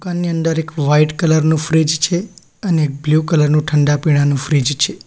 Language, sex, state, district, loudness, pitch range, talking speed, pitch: Gujarati, male, Gujarat, Valsad, -15 LUFS, 150-165 Hz, 190 wpm, 155 Hz